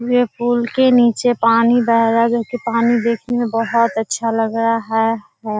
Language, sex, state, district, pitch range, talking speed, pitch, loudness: Hindi, female, Bihar, Kishanganj, 230-240 Hz, 205 wpm, 230 Hz, -16 LUFS